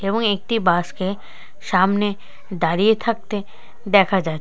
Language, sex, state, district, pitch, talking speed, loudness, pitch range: Bengali, male, West Bengal, Dakshin Dinajpur, 195 Hz, 120 wpm, -20 LUFS, 185-210 Hz